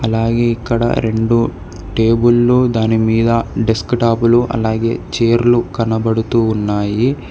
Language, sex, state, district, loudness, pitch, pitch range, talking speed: Telugu, male, Telangana, Hyderabad, -15 LUFS, 115 Hz, 110-120 Hz, 80 wpm